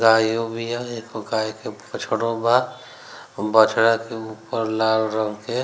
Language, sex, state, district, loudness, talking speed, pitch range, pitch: Bhojpuri, male, Bihar, Gopalganj, -22 LUFS, 160 wpm, 110-115 Hz, 115 Hz